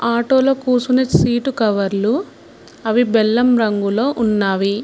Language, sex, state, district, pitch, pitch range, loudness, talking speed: Telugu, female, Telangana, Mahabubabad, 230 Hz, 210-250 Hz, -16 LUFS, 110 wpm